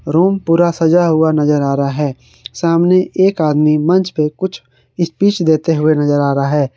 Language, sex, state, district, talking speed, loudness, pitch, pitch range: Hindi, male, Jharkhand, Garhwa, 185 wpm, -14 LUFS, 155 Hz, 145-175 Hz